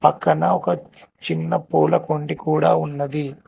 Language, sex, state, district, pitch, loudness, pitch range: Telugu, male, Telangana, Hyderabad, 145 Hz, -21 LUFS, 140-155 Hz